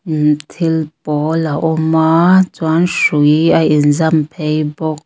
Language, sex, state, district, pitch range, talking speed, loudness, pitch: Mizo, female, Mizoram, Aizawl, 150-160 Hz, 140 wpm, -13 LUFS, 160 Hz